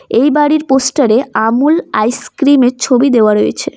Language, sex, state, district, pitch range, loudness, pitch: Bengali, female, West Bengal, Cooch Behar, 235-285 Hz, -11 LUFS, 260 Hz